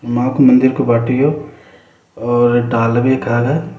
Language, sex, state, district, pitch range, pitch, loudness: Garhwali, male, Uttarakhand, Uttarkashi, 120-135 Hz, 125 Hz, -14 LUFS